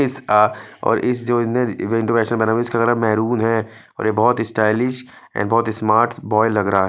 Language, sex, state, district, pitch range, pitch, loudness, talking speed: Hindi, male, Punjab, Fazilka, 110-120 Hz, 115 Hz, -18 LUFS, 165 wpm